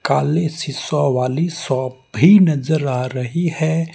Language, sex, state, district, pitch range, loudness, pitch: Hindi, male, Rajasthan, Barmer, 130-165 Hz, -18 LUFS, 150 Hz